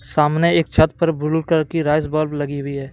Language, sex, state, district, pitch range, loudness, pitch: Hindi, male, Jharkhand, Deoghar, 145-160 Hz, -18 LUFS, 155 Hz